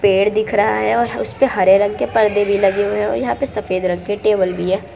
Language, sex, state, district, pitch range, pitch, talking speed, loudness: Hindi, female, Gujarat, Valsad, 190-210 Hz, 205 Hz, 280 wpm, -17 LUFS